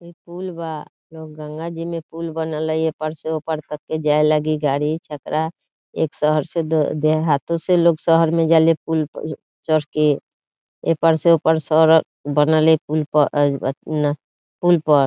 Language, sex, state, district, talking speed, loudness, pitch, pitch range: Bhojpuri, female, Bihar, Saran, 185 wpm, -19 LUFS, 155 Hz, 150-165 Hz